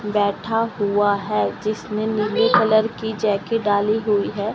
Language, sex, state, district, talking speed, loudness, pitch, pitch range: Hindi, female, Chandigarh, Chandigarh, 145 wpm, -20 LUFS, 210 Hz, 205-220 Hz